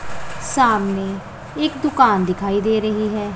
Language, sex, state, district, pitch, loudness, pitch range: Hindi, female, Punjab, Pathankot, 210 Hz, -18 LUFS, 195-255 Hz